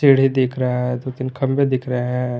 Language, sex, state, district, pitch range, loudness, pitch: Hindi, male, Jharkhand, Garhwa, 125-135 Hz, -20 LUFS, 130 Hz